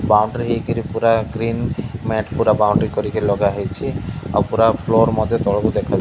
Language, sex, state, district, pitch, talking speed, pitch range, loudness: Odia, male, Odisha, Malkangiri, 110 Hz, 160 wpm, 105-115 Hz, -18 LUFS